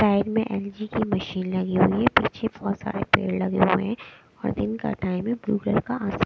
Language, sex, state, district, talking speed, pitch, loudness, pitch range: Hindi, female, Bihar, West Champaran, 200 wpm, 205 Hz, -24 LUFS, 185-220 Hz